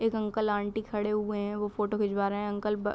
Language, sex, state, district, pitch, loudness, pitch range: Hindi, female, Uttar Pradesh, Hamirpur, 210 Hz, -31 LUFS, 205-210 Hz